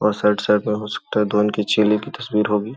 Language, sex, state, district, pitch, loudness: Hindi, male, Uttar Pradesh, Gorakhpur, 105 Hz, -20 LUFS